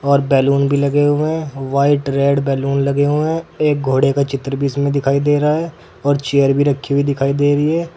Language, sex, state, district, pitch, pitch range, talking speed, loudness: Hindi, male, Uttar Pradesh, Saharanpur, 140 Hz, 140-145 Hz, 225 wpm, -16 LUFS